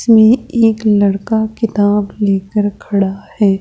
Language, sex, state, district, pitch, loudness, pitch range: Hindi, female, Rajasthan, Jaipur, 210 Hz, -14 LUFS, 200-220 Hz